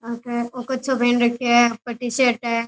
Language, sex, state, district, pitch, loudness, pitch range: Rajasthani, female, Rajasthan, Churu, 240 Hz, -20 LUFS, 235-245 Hz